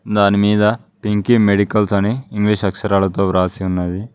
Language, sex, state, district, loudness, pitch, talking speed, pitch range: Telugu, male, Telangana, Mahabubabad, -16 LUFS, 100 Hz, 130 wpm, 95-105 Hz